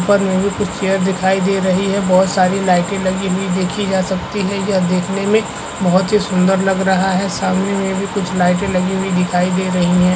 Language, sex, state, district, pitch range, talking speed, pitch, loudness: Hindi, female, Chhattisgarh, Korba, 185-195 Hz, 215 wpm, 190 Hz, -16 LUFS